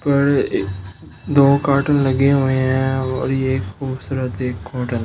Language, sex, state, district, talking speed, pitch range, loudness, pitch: Hindi, male, Delhi, New Delhi, 155 wpm, 125-140 Hz, -18 LUFS, 130 Hz